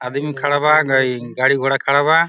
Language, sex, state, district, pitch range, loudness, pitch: Hindi, male, Uttar Pradesh, Deoria, 130-150 Hz, -16 LUFS, 140 Hz